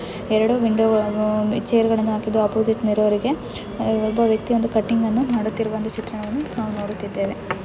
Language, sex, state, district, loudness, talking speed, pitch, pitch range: Kannada, female, Karnataka, Belgaum, -21 LUFS, 100 wpm, 220 Hz, 215-225 Hz